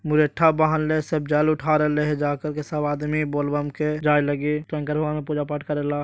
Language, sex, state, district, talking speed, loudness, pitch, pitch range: Magahi, male, Bihar, Jahanabad, 220 wpm, -23 LUFS, 150 Hz, 145-155 Hz